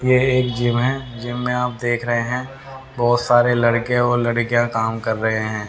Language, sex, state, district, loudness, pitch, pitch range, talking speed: Hindi, male, Haryana, Rohtak, -19 LUFS, 120 Hz, 120-125 Hz, 190 wpm